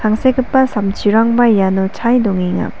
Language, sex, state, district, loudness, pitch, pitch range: Garo, female, Meghalaya, South Garo Hills, -14 LUFS, 220 Hz, 195-240 Hz